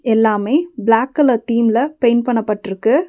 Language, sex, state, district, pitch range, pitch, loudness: Tamil, female, Tamil Nadu, Nilgiris, 225-260 Hz, 235 Hz, -16 LUFS